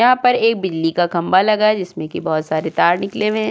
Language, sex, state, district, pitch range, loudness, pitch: Hindi, female, Uttar Pradesh, Jyotiba Phule Nagar, 165-215 Hz, -17 LUFS, 190 Hz